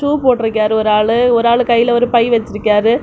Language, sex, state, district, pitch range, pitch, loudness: Tamil, female, Tamil Nadu, Kanyakumari, 215-240 Hz, 235 Hz, -13 LUFS